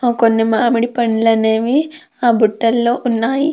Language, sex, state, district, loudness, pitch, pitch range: Telugu, female, Andhra Pradesh, Krishna, -15 LUFS, 235 Hz, 225-245 Hz